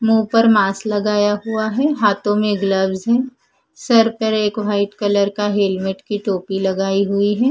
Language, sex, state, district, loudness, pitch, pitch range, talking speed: Hindi, female, Punjab, Fazilka, -17 LUFS, 210 Hz, 200-225 Hz, 175 wpm